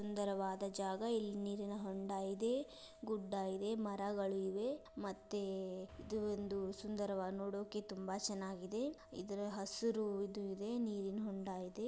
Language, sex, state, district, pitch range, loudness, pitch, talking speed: Kannada, female, Karnataka, Dharwad, 195-210 Hz, -43 LUFS, 200 Hz, 120 wpm